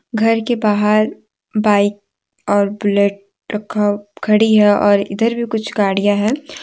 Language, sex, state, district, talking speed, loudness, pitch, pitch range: Hindi, female, Jharkhand, Deoghar, 145 wpm, -16 LUFS, 210 Hz, 205-220 Hz